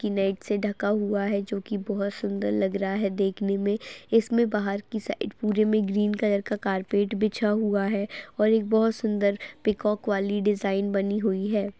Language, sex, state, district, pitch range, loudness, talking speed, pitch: Hindi, female, Uttar Pradesh, Etah, 200-215 Hz, -26 LUFS, 185 wpm, 205 Hz